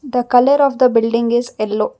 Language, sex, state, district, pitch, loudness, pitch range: English, female, Karnataka, Bangalore, 245 Hz, -15 LUFS, 235-270 Hz